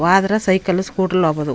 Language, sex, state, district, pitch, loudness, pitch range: Kannada, female, Karnataka, Chamarajanagar, 185 Hz, -17 LUFS, 175-190 Hz